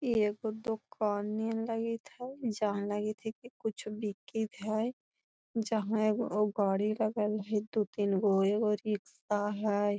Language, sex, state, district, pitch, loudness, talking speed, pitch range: Magahi, female, Bihar, Gaya, 215 Hz, -33 LUFS, 145 wpm, 205-225 Hz